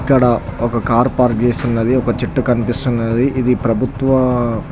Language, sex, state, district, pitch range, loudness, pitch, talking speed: Telugu, male, Telangana, Nalgonda, 120-130 Hz, -15 LUFS, 120 Hz, 165 wpm